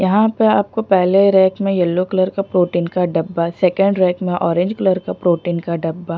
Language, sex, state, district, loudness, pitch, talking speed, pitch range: Hindi, female, Punjab, Pathankot, -16 LUFS, 185 Hz, 205 wpm, 175-195 Hz